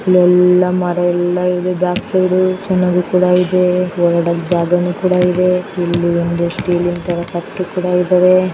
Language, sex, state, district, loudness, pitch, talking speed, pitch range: Kannada, female, Karnataka, Dakshina Kannada, -14 LUFS, 180 Hz, 100 wpm, 175-180 Hz